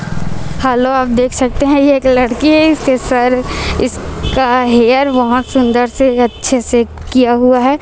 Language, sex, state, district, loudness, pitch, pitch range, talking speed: Hindi, female, Chhattisgarh, Raipur, -12 LUFS, 255 Hz, 245-265 Hz, 160 wpm